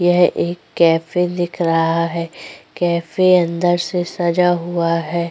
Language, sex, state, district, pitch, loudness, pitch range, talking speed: Hindi, female, Uttar Pradesh, Jyotiba Phule Nagar, 175 Hz, -17 LUFS, 170-175 Hz, 135 wpm